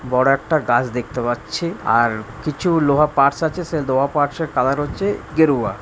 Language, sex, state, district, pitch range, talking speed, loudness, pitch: Bengali, male, West Bengal, Purulia, 125-160 Hz, 185 wpm, -19 LUFS, 140 Hz